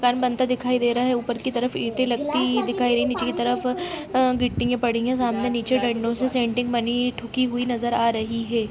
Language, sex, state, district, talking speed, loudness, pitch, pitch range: Angika, female, Bihar, Madhepura, 235 wpm, -23 LUFS, 245 Hz, 235-250 Hz